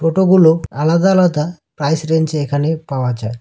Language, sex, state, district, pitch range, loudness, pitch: Bengali, male, West Bengal, Cooch Behar, 145-170 Hz, -15 LUFS, 160 Hz